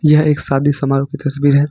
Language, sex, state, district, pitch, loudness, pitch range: Hindi, male, Jharkhand, Ranchi, 145 Hz, -15 LUFS, 140-150 Hz